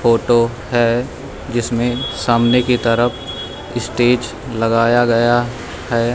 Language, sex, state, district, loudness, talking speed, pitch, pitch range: Hindi, male, Madhya Pradesh, Katni, -16 LUFS, 95 wpm, 120 Hz, 115-120 Hz